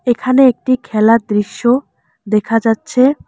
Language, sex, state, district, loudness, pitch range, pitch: Bengali, female, West Bengal, Alipurduar, -14 LUFS, 215-255 Hz, 230 Hz